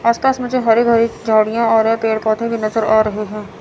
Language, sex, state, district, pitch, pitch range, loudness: Hindi, female, Chandigarh, Chandigarh, 225 Hz, 220-230 Hz, -15 LUFS